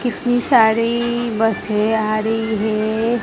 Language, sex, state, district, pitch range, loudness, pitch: Hindi, female, Gujarat, Gandhinagar, 215-235 Hz, -18 LUFS, 225 Hz